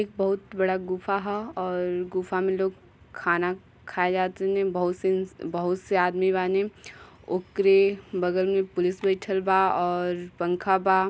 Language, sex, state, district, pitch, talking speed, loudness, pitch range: Bhojpuri, female, Uttar Pradesh, Gorakhpur, 185 Hz, 150 wpm, -26 LUFS, 180-195 Hz